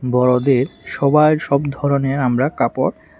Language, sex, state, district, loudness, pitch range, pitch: Bengali, male, Tripura, West Tripura, -17 LUFS, 125-140 Hz, 135 Hz